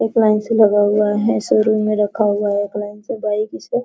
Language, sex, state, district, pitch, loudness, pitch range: Hindi, female, Bihar, Araria, 210 Hz, -17 LUFS, 205-215 Hz